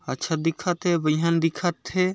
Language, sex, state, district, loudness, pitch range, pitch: Chhattisgarhi, male, Chhattisgarh, Sarguja, -24 LUFS, 165-180 Hz, 170 Hz